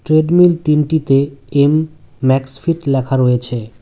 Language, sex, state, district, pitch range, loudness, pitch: Bengali, male, West Bengal, Cooch Behar, 130-155 Hz, -15 LUFS, 140 Hz